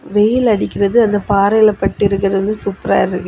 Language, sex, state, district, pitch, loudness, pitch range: Tamil, female, Tamil Nadu, Kanyakumari, 205 Hz, -14 LUFS, 195-215 Hz